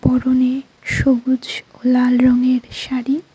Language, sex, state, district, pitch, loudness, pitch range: Bengali, female, Tripura, Unakoti, 255 Hz, -17 LUFS, 250-260 Hz